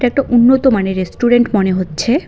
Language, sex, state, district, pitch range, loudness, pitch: Bengali, female, West Bengal, Cooch Behar, 190-255 Hz, -13 LUFS, 240 Hz